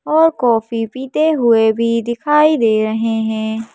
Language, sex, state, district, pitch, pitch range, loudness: Hindi, female, Madhya Pradesh, Bhopal, 230 Hz, 225-295 Hz, -15 LUFS